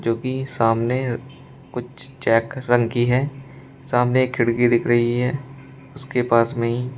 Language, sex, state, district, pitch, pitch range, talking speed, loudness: Hindi, male, Uttar Pradesh, Shamli, 125 Hz, 120-135 Hz, 165 wpm, -21 LUFS